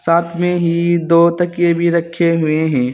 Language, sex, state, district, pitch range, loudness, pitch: Hindi, male, Uttar Pradesh, Saharanpur, 165-170 Hz, -15 LUFS, 170 Hz